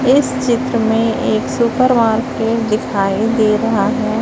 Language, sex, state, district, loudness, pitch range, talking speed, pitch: Hindi, female, Chhattisgarh, Raipur, -15 LUFS, 220-240 Hz, 140 wpm, 230 Hz